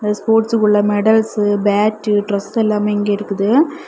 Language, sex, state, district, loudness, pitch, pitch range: Tamil, female, Tamil Nadu, Kanyakumari, -15 LUFS, 210 Hz, 205-220 Hz